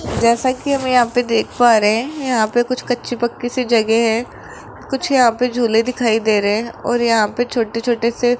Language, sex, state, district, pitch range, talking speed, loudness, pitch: Hindi, male, Rajasthan, Jaipur, 230-245 Hz, 230 wpm, -17 LUFS, 240 Hz